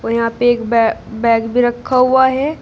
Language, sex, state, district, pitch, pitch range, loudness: Hindi, female, Uttar Pradesh, Shamli, 240 Hz, 230-255 Hz, -14 LUFS